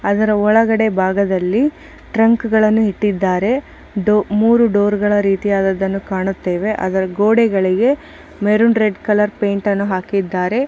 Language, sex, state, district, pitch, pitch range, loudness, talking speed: Kannada, female, Karnataka, Chamarajanagar, 205 Hz, 195-220 Hz, -16 LUFS, 110 wpm